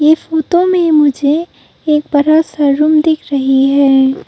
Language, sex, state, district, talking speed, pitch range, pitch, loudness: Hindi, female, Arunachal Pradesh, Papum Pare, 155 wpm, 280-320 Hz, 300 Hz, -11 LUFS